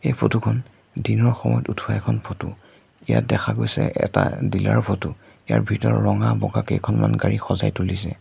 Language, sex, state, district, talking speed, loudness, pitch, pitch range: Assamese, male, Assam, Sonitpur, 160 wpm, -22 LUFS, 110 Hz, 105-120 Hz